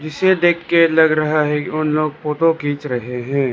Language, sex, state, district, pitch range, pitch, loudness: Hindi, male, Arunachal Pradesh, Lower Dibang Valley, 145-165 Hz, 155 Hz, -17 LUFS